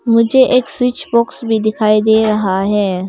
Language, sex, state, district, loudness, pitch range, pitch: Hindi, female, Arunachal Pradesh, Longding, -13 LUFS, 215-245 Hz, 220 Hz